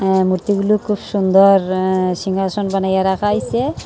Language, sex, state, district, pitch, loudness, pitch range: Bengali, female, Tripura, Unakoti, 195 Hz, -16 LUFS, 190-205 Hz